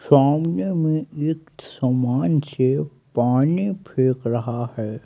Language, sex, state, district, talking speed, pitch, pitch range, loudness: Hindi, male, Haryana, Rohtak, 105 wpm, 135 Hz, 125-155 Hz, -21 LUFS